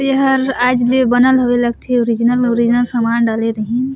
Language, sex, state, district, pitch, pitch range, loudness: Surgujia, female, Chhattisgarh, Sarguja, 245 Hz, 235-255 Hz, -14 LUFS